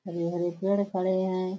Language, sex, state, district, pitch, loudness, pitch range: Hindi, female, Uttar Pradesh, Budaun, 185 Hz, -28 LUFS, 175-190 Hz